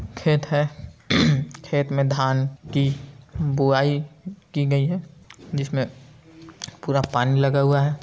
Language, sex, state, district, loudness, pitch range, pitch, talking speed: Hindi, male, Bihar, Saran, -22 LUFS, 135-150 Hz, 140 Hz, 125 wpm